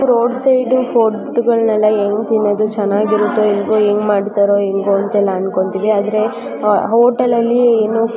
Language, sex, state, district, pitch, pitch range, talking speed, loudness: Kannada, male, Karnataka, Mysore, 215 Hz, 205-235 Hz, 75 wpm, -14 LUFS